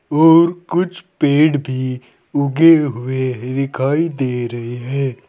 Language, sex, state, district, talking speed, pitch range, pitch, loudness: Hindi, male, Uttar Pradesh, Saharanpur, 115 wpm, 130-160 Hz, 135 Hz, -16 LUFS